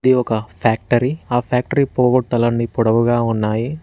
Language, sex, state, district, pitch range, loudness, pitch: Telugu, male, Telangana, Mahabubabad, 115-125 Hz, -17 LUFS, 120 Hz